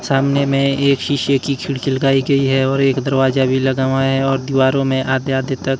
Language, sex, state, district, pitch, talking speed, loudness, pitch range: Hindi, male, Himachal Pradesh, Shimla, 135 Hz, 230 wpm, -16 LUFS, 130-135 Hz